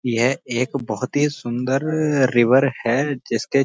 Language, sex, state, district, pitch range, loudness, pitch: Hindi, male, Uttarakhand, Uttarkashi, 125-140 Hz, -20 LUFS, 130 Hz